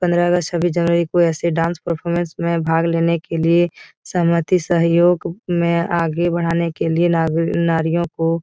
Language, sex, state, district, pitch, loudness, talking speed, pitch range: Hindi, female, Bihar, Jahanabad, 170 Hz, -18 LUFS, 165 wpm, 165-175 Hz